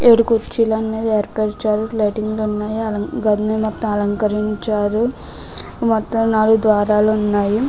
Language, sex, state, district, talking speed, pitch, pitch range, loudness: Telugu, female, Andhra Pradesh, Krishna, 100 wpm, 215 Hz, 210-225 Hz, -18 LUFS